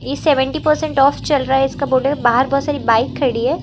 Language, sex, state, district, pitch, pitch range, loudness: Hindi, female, Uttar Pradesh, Lucknow, 275 Hz, 260-290 Hz, -16 LUFS